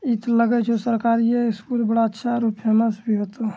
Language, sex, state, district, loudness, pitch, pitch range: Angika, male, Bihar, Bhagalpur, -21 LUFS, 230 Hz, 220-235 Hz